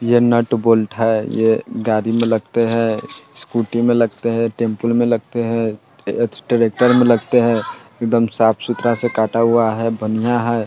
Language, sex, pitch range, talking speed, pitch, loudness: Bajjika, male, 110-120 Hz, 170 wpm, 115 Hz, -17 LUFS